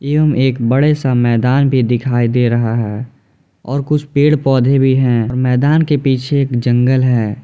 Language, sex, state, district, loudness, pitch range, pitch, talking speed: Hindi, male, Jharkhand, Ranchi, -14 LUFS, 120-140 Hz, 130 Hz, 170 wpm